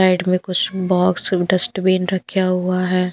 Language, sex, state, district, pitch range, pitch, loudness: Hindi, female, Punjab, Pathankot, 180-185 Hz, 185 Hz, -18 LUFS